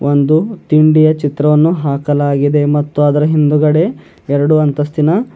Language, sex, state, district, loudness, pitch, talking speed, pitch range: Kannada, male, Karnataka, Bidar, -12 LUFS, 150 Hz, 100 wpm, 145-155 Hz